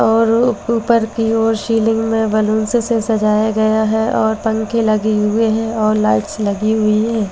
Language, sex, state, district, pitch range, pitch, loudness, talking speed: Hindi, female, Delhi, New Delhi, 215-225 Hz, 220 Hz, -15 LUFS, 170 wpm